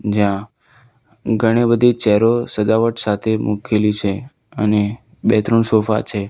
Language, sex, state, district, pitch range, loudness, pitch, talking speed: Gujarati, male, Gujarat, Valsad, 105-115 Hz, -17 LUFS, 110 Hz, 125 wpm